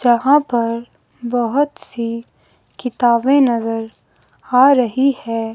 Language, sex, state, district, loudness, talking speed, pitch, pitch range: Hindi, female, Himachal Pradesh, Shimla, -17 LUFS, 95 wpm, 240 Hz, 230-265 Hz